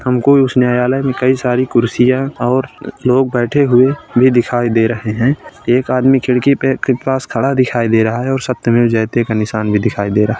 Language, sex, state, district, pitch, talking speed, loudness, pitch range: Hindi, male, Uttar Pradesh, Ghazipur, 125 Hz, 225 wpm, -14 LUFS, 115-130 Hz